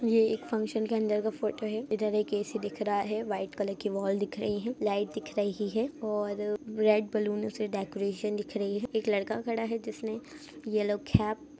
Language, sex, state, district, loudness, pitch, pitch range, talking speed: Hindi, female, Jharkhand, Sahebganj, -31 LUFS, 215 Hz, 205-220 Hz, 200 wpm